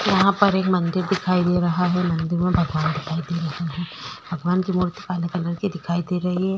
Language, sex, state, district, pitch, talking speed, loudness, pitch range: Hindi, female, Chhattisgarh, Korba, 180 Hz, 230 wpm, -22 LUFS, 170-185 Hz